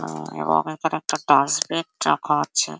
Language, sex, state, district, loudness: Bengali, female, West Bengal, Jhargram, -22 LUFS